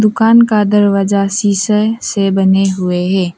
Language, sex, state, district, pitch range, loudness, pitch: Hindi, female, Arunachal Pradesh, Papum Pare, 195-215 Hz, -12 LUFS, 200 Hz